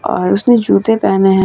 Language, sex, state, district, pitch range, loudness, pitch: Hindi, female, Bihar, Vaishali, 190-225 Hz, -12 LUFS, 195 Hz